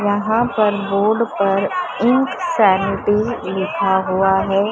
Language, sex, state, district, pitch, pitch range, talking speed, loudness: Hindi, female, Maharashtra, Mumbai Suburban, 205 Hz, 195-230 Hz, 115 wpm, -17 LUFS